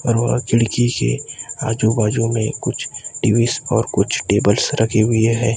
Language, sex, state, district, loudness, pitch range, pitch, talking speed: Hindi, male, Maharashtra, Gondia, -18 LUFS, 110-120 Hz, 115 Hz, 160 wpm